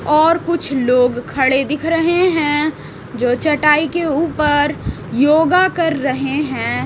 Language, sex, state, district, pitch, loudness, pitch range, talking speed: Hindi, female, Chhattisgarh, Raipur, 300 Hz, -16 LUFS, 275-330 Hz, 130 wpm